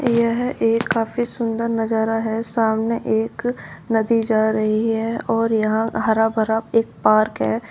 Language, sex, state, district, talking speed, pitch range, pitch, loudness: Hindi, female, Uttar Pradesh, Shamli, 150 wpm, 220-230 Hz, 225 Hz, -20 LUFS